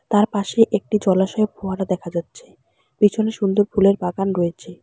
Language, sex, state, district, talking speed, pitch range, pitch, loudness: Bengali, female, West Bengal, Alipurduar, 150 wpm, 185-210 Hz, 200 Hz, -20 LUFS